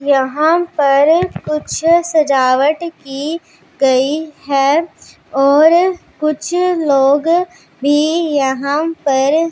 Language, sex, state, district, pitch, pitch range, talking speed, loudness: Hindi, female, Punjab, Pathankot, 305 Hz, 275-330 Hz, 80 wpm, -14 LUFS